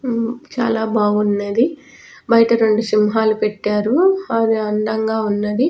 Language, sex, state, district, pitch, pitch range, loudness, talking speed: Telugu, female, Telangana, Nalgonda, 220 Hz, 210-235 Hz, -17 LUFS, 95 wpm